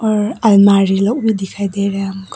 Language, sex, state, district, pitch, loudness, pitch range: Hindi, female, Arunachal Pradesh, Papum Pare, 200 Hz, -14 LUFS, 195-215 Hz